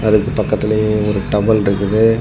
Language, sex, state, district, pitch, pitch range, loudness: Tamil, male, Tamil Nadu, Kanyakumari, 105 Hz, 105-110 Hz, -15 LUFS